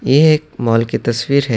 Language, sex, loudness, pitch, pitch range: Urdu, male, -15 LUFS, 135 Hz, 115-145 Hz